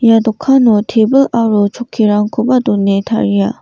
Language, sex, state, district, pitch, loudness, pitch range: Garo, female, Meghalaya, West Garo Hills, 225 Hz, -12 LUFS, 205-240 Hz